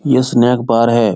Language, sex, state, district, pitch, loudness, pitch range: Hindi, male, Uttar Pradesh, Etah, 120 Hz, -13 LUFS, 115-125 Hz